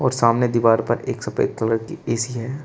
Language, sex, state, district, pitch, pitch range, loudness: Hindi, male, Uttar Pradesh, Shamli, 120 Hz, 115-130 Hz, -21 LUFS